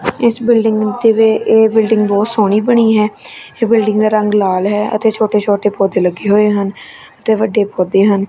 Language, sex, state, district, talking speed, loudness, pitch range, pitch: Punjabi, female, Punjab, Kapurthala, 190 wpm, -13 LUFS, 205-220 Hz, 210 Hz